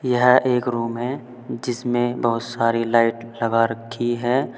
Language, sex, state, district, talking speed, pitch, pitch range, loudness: Hindi, male, Uttar Pradesh, Saharanpur, 145 wpm, 120 Hz, 115-125 Hz, -21 LUFS